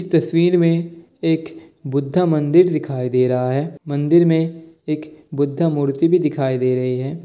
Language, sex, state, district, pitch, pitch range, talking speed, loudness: Hindi, male, Bihar, Kishanganj, 155 Hz, 140-165 Hz, 155 wpm, -18 LUFS